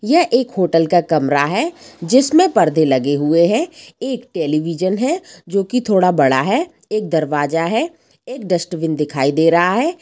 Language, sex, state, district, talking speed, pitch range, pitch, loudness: Hindi, female, Jharkhand, Sahebganj, 160 wpm, 160-255 Hz, 185 Hz, -16 LUFS